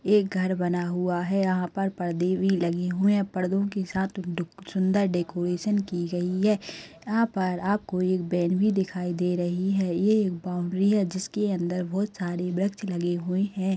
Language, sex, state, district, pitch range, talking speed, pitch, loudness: Hindi, female, Maharashtra, Sindhudurg, 175-195 Hz, 185 wpm, 185 Hz, -26 LUFS